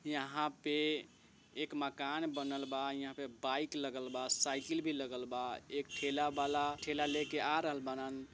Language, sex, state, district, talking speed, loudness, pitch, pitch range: Bajjika, male, Bihar, Vaishali, 165 wpm, -38 LUFS, 140 Hz, 135-150 Hz